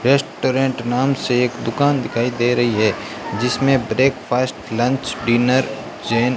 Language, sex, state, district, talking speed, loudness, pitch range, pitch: Hindi, male, Rajasthan, Bikaner, 140 wpm, -19 LUFS, 120-135 Hz, 125 Hz